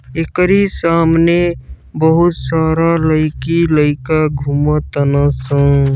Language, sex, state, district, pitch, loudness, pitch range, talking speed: Bhojpuri, female, Uttar Pradesh, Deoria, 155 Hz, -14 LUFS, 140-165 Hz, 80 wpm